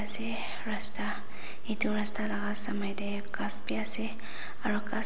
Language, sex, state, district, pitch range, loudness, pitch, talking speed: Nagamese, female, Nagaland, Dimapur, 205-215 Hz, -19 LUFS, 210 Hz, 140 wpm